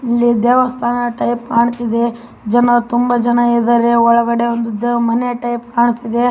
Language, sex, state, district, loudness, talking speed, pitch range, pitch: Kannada, female, Karnataka, Raichur, -14 LUFS, 135 wpm, 235-240 Hz, 240 Hz